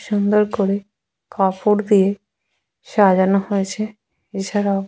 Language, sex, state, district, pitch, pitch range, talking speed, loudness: Bengali, female, West Bengal, Jalpaiguri, 200 Hz, 195-210 Hz, 110 wpm, -18 LUFS